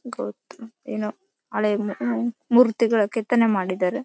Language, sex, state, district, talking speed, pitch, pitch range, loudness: Kannada, female, Karnataka, Bellary, 90 wpm, 230 Hz, 210-250 Hz, -23 LUFS